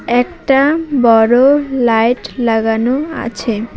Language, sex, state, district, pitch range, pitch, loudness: Bengali, female, West Bengal, Alipurduar, 230-275 Hz, 245 Hz, -13 LUFS